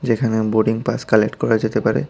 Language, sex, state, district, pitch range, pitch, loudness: Bengali, male, Tripura, West Tripura, 110-120 Hz, 110 Hz, -18 LUFS